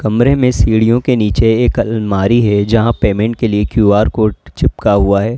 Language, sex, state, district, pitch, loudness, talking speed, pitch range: Hindi, male, Uttar Pradesh, Lalitpur, 110 Hz, -13 LUFS, 190 wpm, 105-120 Hz